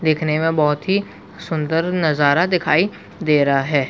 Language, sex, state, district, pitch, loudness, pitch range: Hindi, male, Chhattisgarh, Bilaspur, 155 Hz, -18 LUFS, 150-170 Hz